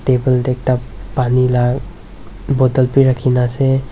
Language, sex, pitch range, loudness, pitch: Nagamese, male, 125-130 Hz, -15 LUFS, 125 Hz